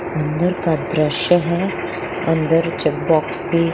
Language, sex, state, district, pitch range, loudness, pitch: Hindi, female, Bihar, Muzaffarpur, 160-180 Hz, -18 LUFS, 170 Hz